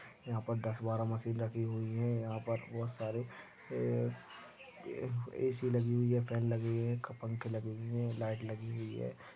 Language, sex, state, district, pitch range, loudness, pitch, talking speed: Hindi, male, Maharashtra, Sindhudurg, 110-120 Hz, -38 LUFS, 115 Hz, 190 wpm